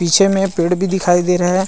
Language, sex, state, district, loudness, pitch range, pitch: Chhattisgarhi, male, Chhattisgarh, Rajnandgaon, -15 LUFS, 175-195 Hz, 180 Hz